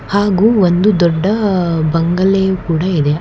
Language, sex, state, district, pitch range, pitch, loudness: Kannada, female, Karnataka, Bangalore, 165-195 Hz, 185 Hz, -13 LUFS